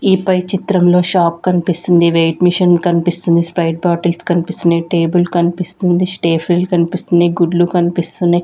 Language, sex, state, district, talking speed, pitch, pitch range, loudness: Telugu, female, Andhra Pradesh, Sri Satya Sai, 120 wpm, 175 Hz, 170-180 Hz, -14 LUFS